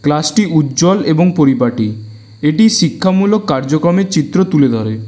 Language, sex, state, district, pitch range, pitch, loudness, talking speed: Bengali, male, West Bengal, Alipurduar, 130-185 Hz, 155 Hz, -12 LUFS, 120 wpm